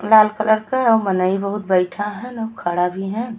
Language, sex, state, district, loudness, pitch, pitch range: Bhojpuri, female, Uttar Pradesh, Ghazipur, -19 LUFS, 210 Hz, 190-225 Hz